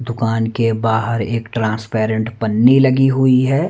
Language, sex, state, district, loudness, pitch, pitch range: Hindi, male, Madhya Pradesh, Umaria, -16 LUFS, 115 Hz, 110-130 Hz